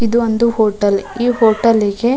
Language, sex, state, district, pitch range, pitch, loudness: Kannada, female, Karnataka, Dharwad, 215-235 Hz, 225 Hz, -14 LUFS